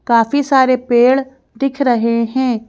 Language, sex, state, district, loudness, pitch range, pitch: Hindi, female, Madhya Pradesh, Bhopal, -14 LUFS, 235-270 Hz, 255 Hz